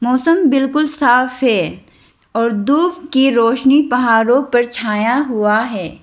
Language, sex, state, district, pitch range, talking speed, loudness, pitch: Hindi, female, Arunachal Pradesh, Lower Dibang Valley, 230-275 Hz, 130 wpm, -14 LUFS, 250 Hz